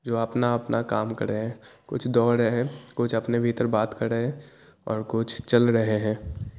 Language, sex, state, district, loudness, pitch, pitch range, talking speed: Hindi, male, Bihar, Kishanganj, -25 LUFS, 115 Hz, 110-120 Hz, 180 wpm